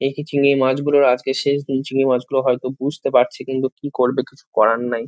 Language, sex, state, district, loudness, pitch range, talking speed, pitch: Bengali, male, West Bengal, North 24 Parganas, -19 LUFS, 125-140 Hz, 200 wpm, 135 Hz